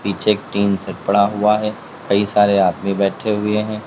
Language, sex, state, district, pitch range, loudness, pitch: Hindi, male, Uttar Pradesh, Lalitpur, 100-105 Hz, -17 LUFS, 100 Hz